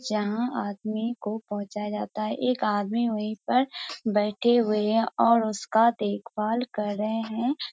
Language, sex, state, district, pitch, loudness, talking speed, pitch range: Hindi, female, Bihar, Kishanganj, 220 Hz, -26 LUFS, 145 wpm, 210-235 Hz